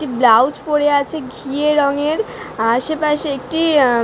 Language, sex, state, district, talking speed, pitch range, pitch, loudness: Bengali, female, West Bengal, Dakshin Dinajpur, 165 wpm, 260-305 Hz, 290 Hz, -16 LUFS